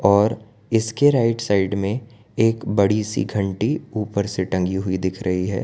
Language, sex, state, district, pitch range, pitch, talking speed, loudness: Hindi, male, Gujarat, Valsad, 95-115 Hz, 105 Hz, 170 wpm, -21 LUFS